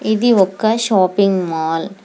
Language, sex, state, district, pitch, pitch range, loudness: Telugu, female, Telangana, Hyderabad, 195 Hz, 185-215 Hz, -15 LUFS